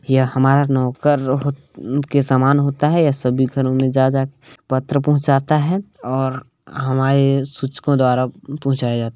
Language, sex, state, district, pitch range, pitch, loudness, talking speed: Hindi, male, Chhattisgarh, Balrampur, 130-140 Hz, 135 Hz, -18 LUFS, 150 wpm